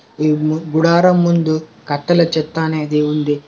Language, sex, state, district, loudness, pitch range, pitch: Telugu, male, Telangana, Komaram Bheem, -16 LUFS, 150-165 Hz, 155 Hz